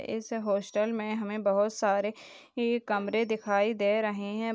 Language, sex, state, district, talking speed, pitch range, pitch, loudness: Hindi, female, Bihar, Darbhanga, 160 wpm, 205-220 Hz, 215 Hz, -29 LUFS